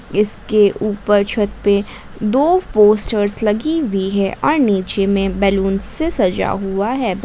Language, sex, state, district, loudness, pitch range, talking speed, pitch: Hindi, female, Jharkhand, Garhwa, -16 LUFS, 195-225 Hz, 140 wpm, 205 Hz